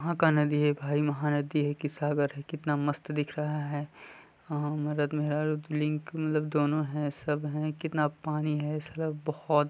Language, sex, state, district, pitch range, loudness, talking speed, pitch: Hindi, male, Chhattisgarh, Balrampur, 145-155 Hz, -30 LUFS, 160 wpm, 150 Hz